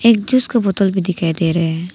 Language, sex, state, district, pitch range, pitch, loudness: Hindi, female, Arunachal Pradesh, Papum Pare, 170-230 Hz, 185 Hz, -16 LUFS